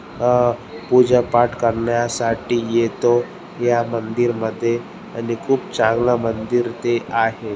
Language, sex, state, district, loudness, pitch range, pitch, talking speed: Marathi, male, Maharashtra, Aurangabad, -19 LUFS, 115-120 Hz, 120 Hz, 110 wpm